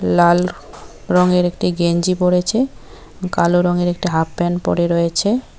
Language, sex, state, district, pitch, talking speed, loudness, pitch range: Bengali, female, West Bengal, Cooch Behar, 175 Hz, 130 wpm, -17 LUFS, 170-180 Hz